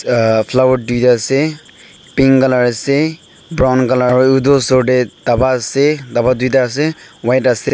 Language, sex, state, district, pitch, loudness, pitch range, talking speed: Nagamese, male, Nagaland, Dimapur, 130 Hz, -13 LUFS, 125-140 Hz, 155 wpm